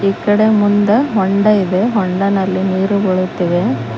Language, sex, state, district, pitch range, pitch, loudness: Kannada, female, Karnataka, Koppal, 185-205 Hz, 195 Hz, -14 LUFS